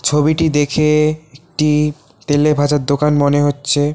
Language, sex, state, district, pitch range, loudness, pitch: Bengali, male, West Bengal, Kolkata, 145-150 Hz, -15 LUFS, 150 Hz